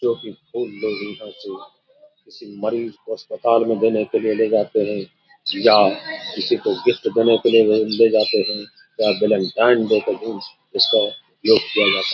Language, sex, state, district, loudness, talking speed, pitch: Hindi, male, Bihar, Samastipur, -19 LUFS, 185 wpm, 115 Hz